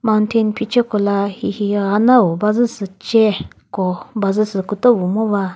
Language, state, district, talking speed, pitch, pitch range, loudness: Chakhesang, Nagaland, Dimapur, 150 wpm, 210 Hz, 200-225 Hz, -17 LUFS